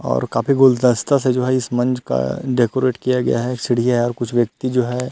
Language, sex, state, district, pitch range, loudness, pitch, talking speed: Hindi, male, Chhattisgarh, Rajnandgaon, 120-130 Hz, -18 LUFS, 125 Hz, 235 wpm